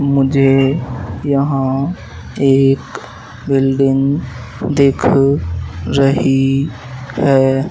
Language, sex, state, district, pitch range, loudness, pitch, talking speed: Hindi, male, Madhya Pradesh, Dhar, 125-135 Hz, -14 LUFS, 135 Hz, 55 wpm